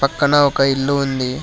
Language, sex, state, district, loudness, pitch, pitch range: Telugu, male, Telangana, Hyderabad, -16 LUFS, 140 Hz, 135-145 Hz